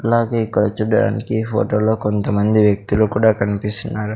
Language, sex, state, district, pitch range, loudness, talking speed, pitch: Telugu, male, Andhra Pradesh, Sri Satya Sai, 105-110 Hz, -17 LUFS, 115 wpm, 105 Hz